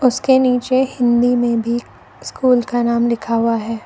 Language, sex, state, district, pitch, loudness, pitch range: Hindi, female, Arunachal Pradesh, Lower Dibang Valley, 240 Hz, -16 LUFS, 235-255 Hz